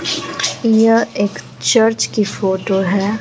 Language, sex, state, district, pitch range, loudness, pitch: Hindi, female, Bihar, West Champaran, 195-225 Hz, -16 LUFS, 210 Hz